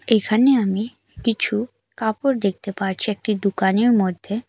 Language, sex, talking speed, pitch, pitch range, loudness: Bengali, female, 120 wpm, 215 Hz, 200-230 Hz, -20 LUFS